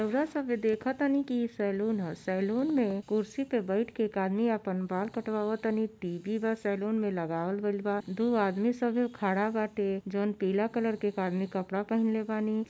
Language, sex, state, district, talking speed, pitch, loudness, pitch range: Bhojpuri, female, Uttar Pradesh, Gorakhpur, 185 wpm, 215 Hz, -31 LUFS, 195-225 Hz